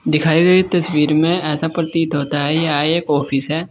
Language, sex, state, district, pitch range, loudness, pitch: Hindi, male, Uttar Pradesh, Saharanpur, 150-165 Hz, -16 LUFS, 160 Hz